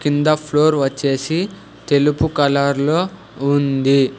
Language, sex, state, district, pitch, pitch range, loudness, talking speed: Telugu, male, Telangana, Hyderabad, 145 Hz, 140-155 Hz, -17 LUFS, 85 wpm